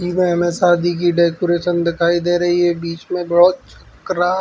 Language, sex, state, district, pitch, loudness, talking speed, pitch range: Bundeli, male, Uttar Pradesh, Hamirpur, 175 Hz, -16 LUFS, 205 wpm, 170-175 Hz